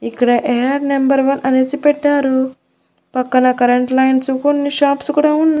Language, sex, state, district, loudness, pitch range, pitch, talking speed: Telugu, female, Andhra Pradesh, Annamaya, -15 LUFS, 255-285 Hz, 265 Hz, 140 wpm